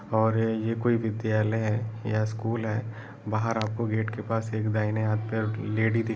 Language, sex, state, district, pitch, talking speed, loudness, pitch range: Hindi, male, Uttar Pradesh, Etah, 110 Hz, 195 wpm, -28 LUFS, 110-115 Hz